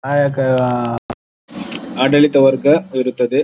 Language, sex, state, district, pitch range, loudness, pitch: Kannada, male, Karnataka, Shimoga, 125-140 Hz, -15 LUFS, 130 Hz